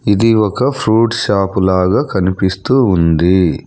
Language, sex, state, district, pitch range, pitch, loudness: Telugu, male, Telangana, Hyderabad, 95-115 Hz, 100 Hz, -13 LUFS